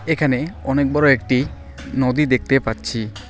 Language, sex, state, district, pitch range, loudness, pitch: Bengali, male, West Bengal, Alipurduar, 110-140 Hz, -19 LUFS, 130 Hz